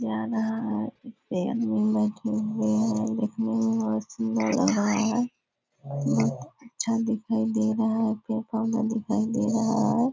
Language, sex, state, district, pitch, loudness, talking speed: Hindi, female, Bihar, Purnia, 215 Hz, -26 LUFS, 155 wpm